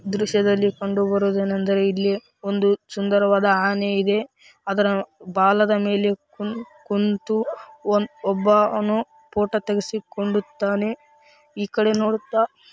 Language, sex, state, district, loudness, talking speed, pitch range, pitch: Kannada, female, Karnataka, Raichur, -22 LUFS, 105 wpm, 200-215 Hz, 205 Hz